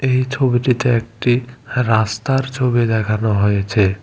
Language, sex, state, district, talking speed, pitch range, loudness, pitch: Bengali, male, Tripura, West Tripura, 105 wpm, 110-130 Hz, -17 LUFS, 120 Hz